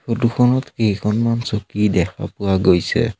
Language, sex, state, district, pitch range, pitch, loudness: Assamese, male, Assam, Sonitpur, 100-115 Hz, 110 Hz, -18 LUFS